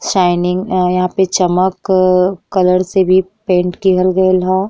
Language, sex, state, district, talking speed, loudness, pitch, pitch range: Bhojpuri, female, Uttar Pradesh, Ghazipur, 155 wpm, -13 LUFS, 185 Hz, 180-190 Hz